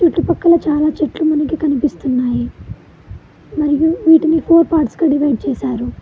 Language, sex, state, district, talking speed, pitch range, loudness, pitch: Telugu, female, Telangana, Mahabubabad, 130 wpm, 265-325 Hz, -14 LUFS, 305 Hz